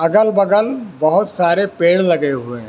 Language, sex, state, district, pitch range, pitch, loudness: Hindi, male, Karnataka, Bangalore, 155-205 Hz, 180 Hz, -15 LUFS